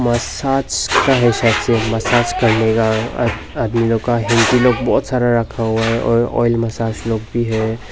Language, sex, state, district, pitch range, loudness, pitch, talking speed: Hindi, male, Nagaland, Dimapur, 110-120 Hz, -16 LUFS, 115 Hz, 190 wpm